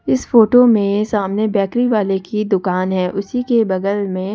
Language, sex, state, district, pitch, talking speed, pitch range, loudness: Hindi, female, Delhi, New Delhi, 205 Hz, 180 wpm, 195-230 Hz, -16 LUFS